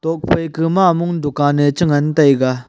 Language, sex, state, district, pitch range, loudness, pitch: Wancho, male, Arunachal Pradesh, Longding, 145-165 Hz, -15 LUFS, 155 Hz